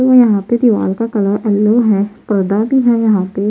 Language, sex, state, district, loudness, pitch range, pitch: Hindi, female, Bihar, Patna, -13 LUFS, 205-235 Hz, 215 Hz